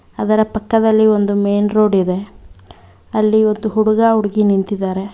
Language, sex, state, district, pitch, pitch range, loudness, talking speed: Kannada, female, Karnataka, Bangalore, 210 Hz, 195-215 Hz, -15 LUFS, 130 wpm